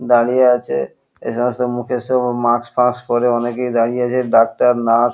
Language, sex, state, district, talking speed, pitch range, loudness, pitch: Bengali, male, West Bengal, Kolkata, 175 wpm, 120-125 Hz, -16 LUFS, 120 Hz